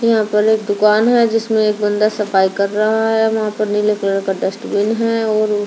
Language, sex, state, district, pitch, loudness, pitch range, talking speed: Hindi, female, Delhi, New Delhi, 215 Hz, -16 LUFS, 205-220 Hz, 235 wpm